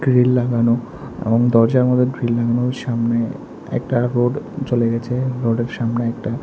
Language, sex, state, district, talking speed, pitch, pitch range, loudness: Bengali, male, Tripura, West Tripura, 140 wpm, 120 Hz, 115-125 Hz, -19 LUFS